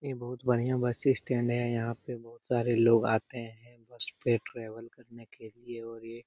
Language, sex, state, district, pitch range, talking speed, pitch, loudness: Hindi, male, Bihar, Lakhisarai, 115-120 Hz, 210 wpm, 120 Hz, -29 LUFS